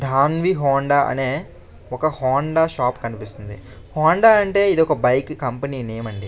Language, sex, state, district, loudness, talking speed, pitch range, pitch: Telugu, male, Andhra Pradesh, Chittoor, -19 LUFS, 145 wpm, 115-155 Hz, 135 Hz